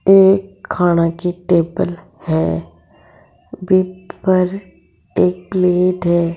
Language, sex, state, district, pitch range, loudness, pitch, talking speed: Marwari, female, Rajasthan, Nagaur, 170-185 Hz, -16 LUFS, 180 Hz, 95 wpm